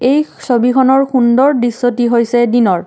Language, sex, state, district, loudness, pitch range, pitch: Assamese, female, Assam, Kamrup Metropolitan, -12 LUFS, 240-265 Hz, 245 Hz